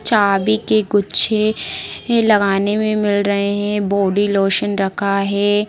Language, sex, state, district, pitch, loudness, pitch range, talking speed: Hindi, female, Rajasthan, Nagaur, 205 Hz, -16 LUFS, 200-215 Hz, 125 wpm